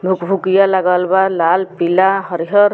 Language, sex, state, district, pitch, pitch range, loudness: Bhojpuri, female, Bihar, Muzaffarpur, 190 Hz, 180-195 Hz, -14 LUFS